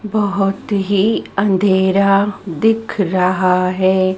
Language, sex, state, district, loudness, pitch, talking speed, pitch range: Hindi, female, Madhya Pradesh, Dhar, -15 LUFS, 195 Hz, 85 wpm, 185-200 Hz